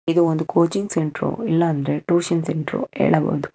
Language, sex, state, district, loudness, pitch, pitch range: Kannada, male, Karnataka, Bangalore, -20 LUFS, 165 Hz, 155-170 Hz